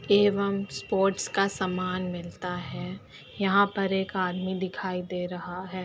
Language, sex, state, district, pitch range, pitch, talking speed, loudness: Hindi, female, Uttar Pradesh, Etah, 180-195 Hz, 185 Hz, 145 wpm, -28 LUFS